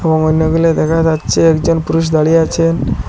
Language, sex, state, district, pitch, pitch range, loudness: Bengali, male, Assam, Hailakandi, 160 Hz, 155-165 Hz, -13 LUFS